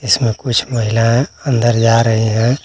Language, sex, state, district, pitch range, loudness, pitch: Hindi, male, Jharkhand, Garhwa, 115-125 Hz, -14 LUFS, 115 Hz